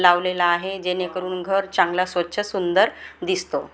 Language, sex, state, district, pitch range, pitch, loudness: Marathi, female, Maharashtra, Gondia, 180-195 Hz, 185 Hz, -22 LUFS